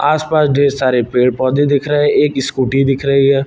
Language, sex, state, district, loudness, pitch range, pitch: Hindi, male, Uttar Pradesh, Lucknow, -14 LUFS, 130-145 Hz, 135 Hz